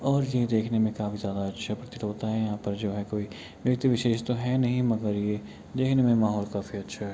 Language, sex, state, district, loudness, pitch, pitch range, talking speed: Hindi, male, Bihar, Kishanganj, -28 LUFS, 110 Hz, 105-125 Hz, 235 wpm